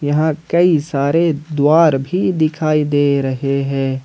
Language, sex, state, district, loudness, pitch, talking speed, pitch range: Hindi, male, Jharkhand, Ranchi, -16 LUFS, 150 Hz, 135 wpm, 140-160 Hz